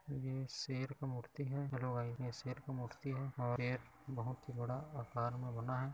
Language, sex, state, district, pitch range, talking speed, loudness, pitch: Hindi, male, Chhattisgarh, Kabirdham, 120-135 Hz, 170 wpm, -43 LUFS, 130 Hz